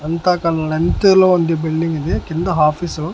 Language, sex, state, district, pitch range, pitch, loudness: Telugu, male, Andhra Pradesh, Annamaya, 155-175 Hz, 165 Hz, -16 LUFS